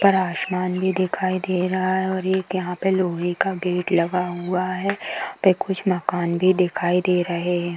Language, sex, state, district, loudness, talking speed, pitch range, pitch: Hindi, female, Bihar, Sitamarhi, -22 LUFS, 195 wpm, 180-190 Hz, 185 Hz